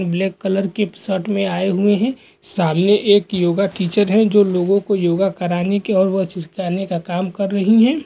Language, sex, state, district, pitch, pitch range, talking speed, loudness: Hindi, male, Uttarakhand, Tehri Garhwal, 195 Hz, 185-205 Hz, 200 wpm, -17 LUFS